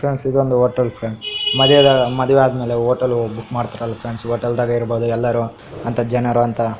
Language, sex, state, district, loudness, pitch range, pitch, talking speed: Kannada, male, Karnataka, Raichur, -17 LUFS, 115-130 Hz, 120 Hz, 175 wpm